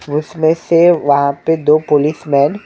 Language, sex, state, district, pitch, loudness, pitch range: Hindi, male, Maharashtra, Mumbai Suburban, 155 Hz, -13 LUFS, 145-160 Hz